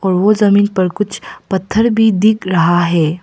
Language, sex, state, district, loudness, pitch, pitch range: Hindi, female, Arunachal Pradesh, Papum Pare, -13 LUFS, 195 Hz, 180-210 Hz